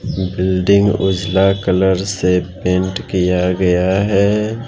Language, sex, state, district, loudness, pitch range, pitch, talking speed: Hindi, male, Bihar, West Champaran, -15 LUFS, 90-100 Hz, 95 Hz, 100 wpm